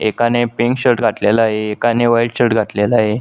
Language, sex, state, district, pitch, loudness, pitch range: Marathi, male, Maharashtra, Solapur, 115 Hz, -15 LUFS, 110-120 Hz